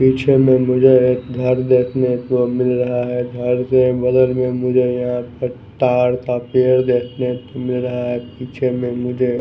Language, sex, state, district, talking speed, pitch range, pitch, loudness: Hindi, male, Bihar, West Champaran, 180 wpm, 125-130 Hz, 125 Hz, -17 LUFS